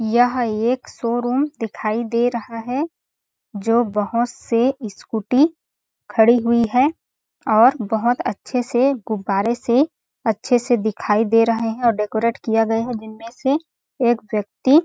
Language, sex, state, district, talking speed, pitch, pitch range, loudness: Hindi, female, Chhattisgarh, Balrampur, 140 wpm, 235 Hz, 225-250 Hz, -19 LUFS